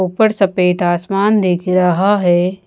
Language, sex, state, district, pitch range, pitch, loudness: Hindi, female, Bihar, Patna, 180-195 Hz, 185 Hz, -14 LUFS